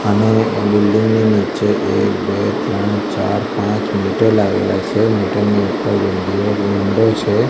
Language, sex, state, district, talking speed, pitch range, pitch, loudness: Gujarati, male, Gujarat, Gandhinagar, 135 wpm, 100-110 Hz, 105 Hz, -16 LUFS